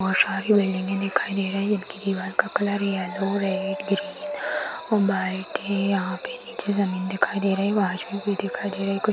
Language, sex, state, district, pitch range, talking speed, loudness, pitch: Hindi, female, Chhattisgarh, Kabirdham, 195-205 Hz, 190 wpm, -25 LUFS, 200 Hz